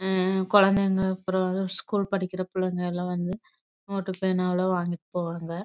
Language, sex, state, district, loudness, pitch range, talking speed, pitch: Tamil, female, Karnataka, Chamarajanagar, -26 LUFS, 180-190 Hz, 105 wpm, 185 Hz